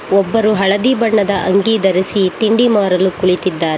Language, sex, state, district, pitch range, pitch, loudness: Kannada, female, Karnataka, Bangalore, 185-220 Hz, 195 Hz, -13 LUFS